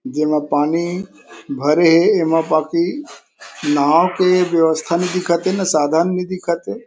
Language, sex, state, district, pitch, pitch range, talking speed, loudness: Chhattisgarhi, male, Chhattisgarh, Korba, 170 Hz, 155-185 Hz, 150 wpm, -16 LUFS